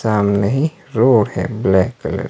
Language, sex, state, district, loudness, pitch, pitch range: Hindi, male, Himachal Pradesh, Shimla, -16 LUFS, 110 Hz, 100-130 Hz